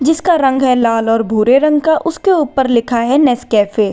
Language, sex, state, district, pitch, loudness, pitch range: Hindi, female, Uttar Pradesh, Lalitpur, 260 Hz, -13 LUFS, 230-305 Hz